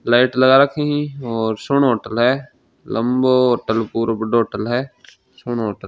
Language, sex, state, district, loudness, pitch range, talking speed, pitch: Hindi, male, Rajasthan, Churu, -18 LUFS, 115-130 Hz, 175 wpm, 120 Hz